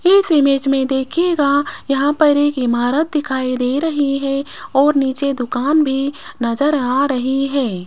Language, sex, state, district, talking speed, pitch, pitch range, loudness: Hindi, female, Rajasthan, Jaipur, 150 wpm, 275 Hz, 265-295 Hz, -17 LUFS